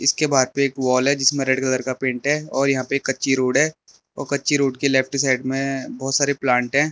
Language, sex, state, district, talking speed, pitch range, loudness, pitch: Hindi, male, Arunachal Pradesh, Lower Dibang Valley, 245 wpm, 130-140 Hz, -20 LUFS, 135 Hz